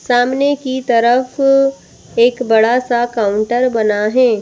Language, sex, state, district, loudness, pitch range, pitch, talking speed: Hindi, female, Madhya Pradesh, Bhopal, -14 LUFS, 230-260 Hz, 245 Hz, 120 wpm